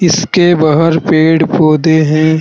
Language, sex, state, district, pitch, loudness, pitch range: Hindi, male, Uttar Pradesh, Saharanpur, 160 Hz, -10 LUFS, 155-165 Hz